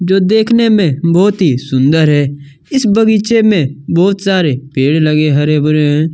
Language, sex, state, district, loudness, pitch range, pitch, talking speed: Hindi, male, Chhattisgarh, Kabirdham, -11 LUFS, 145-200 Hz, 160 Hz, 165 wpm